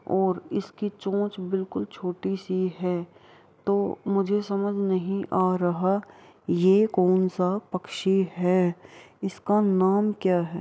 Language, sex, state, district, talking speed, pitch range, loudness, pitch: Hindi, female, Bihar, Araria, 125 wpm, 185-200 Hz, -25 LUFS, 190 Hz